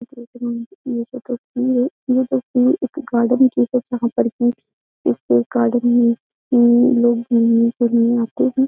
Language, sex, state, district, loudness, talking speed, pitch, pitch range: Hindi, female, Uttar Pradesh, Jyotiba Phule Nagar, -18 LUFS, 175 wpm, 240 Hz, 235-255 Hz